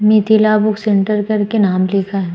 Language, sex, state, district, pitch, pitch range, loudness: Hindi, female, Uttar Pradesh, Muzaffarnagar, 210 Hz, 195-215 Hz, -14 LUFS